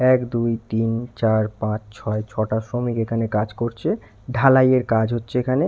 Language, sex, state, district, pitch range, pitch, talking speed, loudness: Bengali, male, West Bengal, Jalpaiguri, 110-125 Hz, 115 Hz, 170 wpm, -21 LUFS